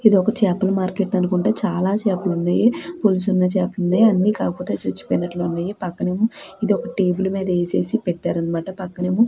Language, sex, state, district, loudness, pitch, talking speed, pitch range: Telugu, female, Andhra Pradesh, Krishna, -20 LUFS, 190 Hz, 155 wpm, 180-205 Hz